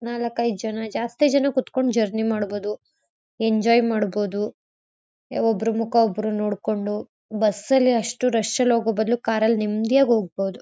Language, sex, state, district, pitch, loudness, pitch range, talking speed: Kannada, female, Karnataka, Mysore, 225 Hz, -22 LUFS, 210-235 Hz, 135 wpm